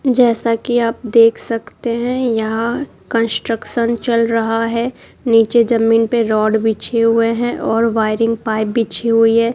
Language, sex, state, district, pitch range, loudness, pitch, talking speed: Hindi, female, Bihar, Kaimur, 225-235 Hz, -16 LUFS, 230 Hz, 150 wpm